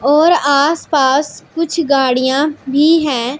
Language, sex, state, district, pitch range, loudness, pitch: Hindi, female, Punjab, Pathankot, 270-315 Hz, -13 LUFS, 290 Hz